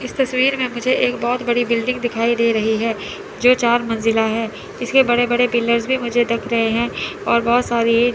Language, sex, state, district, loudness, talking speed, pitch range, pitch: Hindi, female, Chandigarh, Chandigarh, -18 LUFS, 205 wpm, 230-245 Hz, 235 Hz